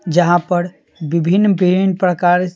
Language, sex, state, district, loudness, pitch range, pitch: Hindi, male, Bihar, Patna, -15 LUFS, 175-185 Hz, 180 Hz